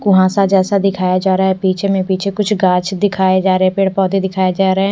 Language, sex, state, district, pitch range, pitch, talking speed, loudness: Hindi, male, Odisha, Nuapada, 185-195 Hz, 190 Hz, 230 wpm, -14 LUFS